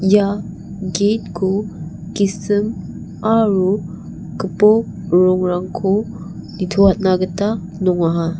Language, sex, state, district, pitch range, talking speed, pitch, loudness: Garo, female, Meghalaya, West Garo Hills, 180-205 Hz, 70 wpm, 190 Hz, -17 LUFS